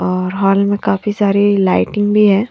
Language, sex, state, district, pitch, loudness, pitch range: Hindi, female, Haryana, Charkhi Dadri, 200 Hz, -14 LUFS, 195-205 Hz